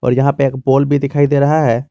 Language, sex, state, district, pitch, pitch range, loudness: Hindi, male, Jharkhand, Garhwa, 140 Hz, 135-145 Hz, -14 LUFS